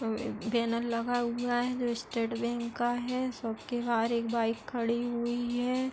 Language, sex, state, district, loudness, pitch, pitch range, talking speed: Hindi, female, Uttar Pradesh, Etah, -32 LUFS, 240 Hz, 230-245 Hz, 190 wpm